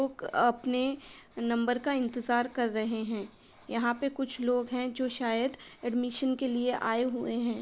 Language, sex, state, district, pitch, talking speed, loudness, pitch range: Hindi, female, Uttar Pradesh, Varanasi, 245 Hz, 165 wpm, -31 LUFS, 235-260 Hz